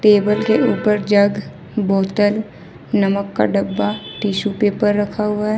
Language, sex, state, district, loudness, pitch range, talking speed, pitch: Hindi, female, Jharkhand, Ranchi, -18 LUFS, 200-210 Hz, 150 wpm, 205 Hz